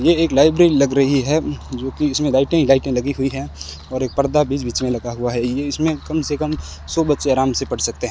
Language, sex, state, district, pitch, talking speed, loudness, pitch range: Hindi, male, Rajasthan, Bikaner, 135 Hz, 265 wpm, -18 LUFS, 130-150 Hz